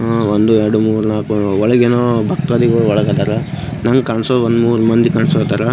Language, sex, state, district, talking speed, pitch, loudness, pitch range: Kannada, male, Karnataka, Gulbarga, 105 wpm, 115 Hz, -14 LUFS, 110-120 Hz